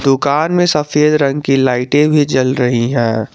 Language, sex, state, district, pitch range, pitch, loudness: Hindi, male, Jharkhand, Garhwa, 125-150 Hz, 140 Hz, -13 LUFS